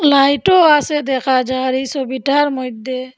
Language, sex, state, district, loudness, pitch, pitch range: Bengali, female, Assam, Hailakandi, -15 LUFS, 265 Hz, 260-290 Hz